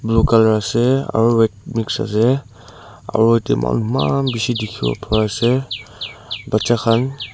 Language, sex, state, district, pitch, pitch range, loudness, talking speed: Nagamese, male, Nagaland, Dimapur, 115 Hz, 110-120 Hz, -17 LUFS, 130 wpm